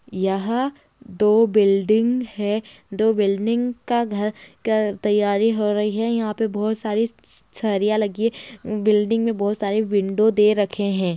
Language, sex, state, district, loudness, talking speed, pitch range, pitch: Hindi, female, Bihar, Bhagalpur, -21 LUFS, 155 wpm, 205-225 Hz, 215 Hz